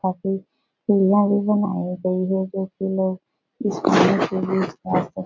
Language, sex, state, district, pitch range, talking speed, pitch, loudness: Hindi, female, Bihar, Jahanabad, 185-205 Hz, 115 wpm, 190 Hz, -21 LUFS